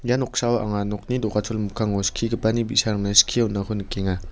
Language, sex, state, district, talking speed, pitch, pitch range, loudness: Garo, male, Meghalaya, West Garo Hills, 155 wpm, 110 Hz, 100-115 Hz, -22 LUFS